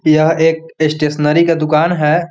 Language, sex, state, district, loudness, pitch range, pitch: Hindi, male, Bihar, Muzaffarpur, -13 LUFS, 155-165 Hz, 155 Hz